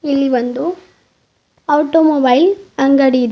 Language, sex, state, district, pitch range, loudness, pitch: Kannada, female, Karnataka, Bidar, 265-325 Hz, -14 LUFS, 285 Hz